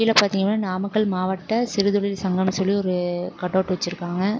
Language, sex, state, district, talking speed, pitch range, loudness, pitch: Tamil, female, Tamil Nadu, Namakkal, 150 wpm, 185-205 Hz, -22 LUFS, 190 Hz